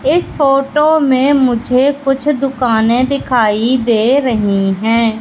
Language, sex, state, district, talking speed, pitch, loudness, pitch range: Hindi, female, Madhya Pradesh, Katni, 115 wpm, 255 Hz, -13 LUFS, 225-275 Hz